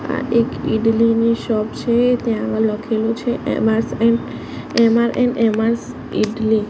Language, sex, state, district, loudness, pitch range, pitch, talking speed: Gujarati, female, Gujarat, Gandhinagar, -18 LUFS, 220-235 Hz, 230 Hz, 80 wpm